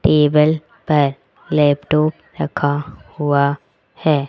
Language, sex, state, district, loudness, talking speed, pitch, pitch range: Hindi, female, Rajasthan, Jaipur, -18 LUFS, 85 wpm, 145 Hz, 140-150 Hz